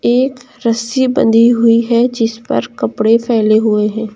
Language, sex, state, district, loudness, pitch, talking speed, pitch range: Hindi, female, Uttar Pradesh, Lucknow, -13 LUFS, 230 Hz, 160 wpm, 225-245 Hz